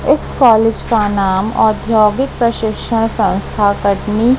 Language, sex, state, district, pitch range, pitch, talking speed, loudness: Hindi, female, Madhya Pradesh, Katni, 205-230 Hz, 220 Hz, 110 wpm, -14 LUFS